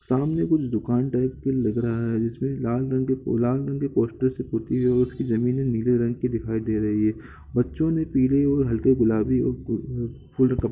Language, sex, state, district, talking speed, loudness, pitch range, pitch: Hindi, male, Bihar, Gopalganj, 190 wpm, -24 LUFS, 115-130 Hz, 125 Hz